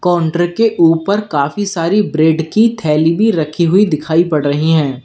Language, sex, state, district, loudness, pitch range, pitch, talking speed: Hindi, male, Uttar Pradesh, Lalitpur, -13 LUFS, 155-200 Hz, 165 Hz, 180 wpm